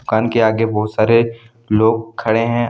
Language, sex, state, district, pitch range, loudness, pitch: Hindi, male, Jharkhand, Deoghar, 110-115 Hz, -16 LUFS, 115 Hz